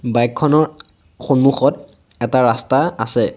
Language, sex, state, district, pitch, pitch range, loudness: Assamese, male, Assam, Sonitpur, 125 Hz, 115-135 Hz, -16 LUFS